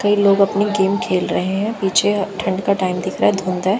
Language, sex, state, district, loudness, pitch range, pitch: Hindi, female, Haryana, Jhajjar, -18 LUFS, 185-205 Hz, 195 Hz